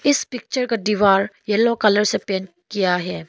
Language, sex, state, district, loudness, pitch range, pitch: Hindi, female, Arunachal Pradesh, Longding, -19 LUFS, 190-230 Hz, 210 Hz